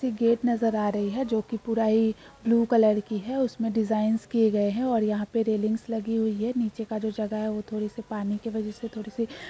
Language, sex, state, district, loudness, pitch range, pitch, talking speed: Hindi, female, Uttar Pradesh, Jalaun, -27 LUFS, 215-230 Hz, 220 Hz, 260 wpm